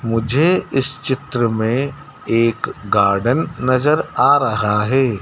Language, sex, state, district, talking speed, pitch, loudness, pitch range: Hindi, male, Madhya Pradesh, Dhar, 115 wpm, 130 Hz, -17 LUFS, 115-140 Hz